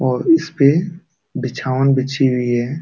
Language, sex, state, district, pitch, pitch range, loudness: Hindi, male, Uttar Pradesh, Jalaun, 135 Hz, 130-160 Hz, -17 LUFS